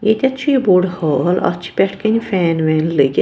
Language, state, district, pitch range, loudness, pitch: Kashmiri, Punjab, Kapurthala, 165-220 Hz, -16 LUFS, 180 Hz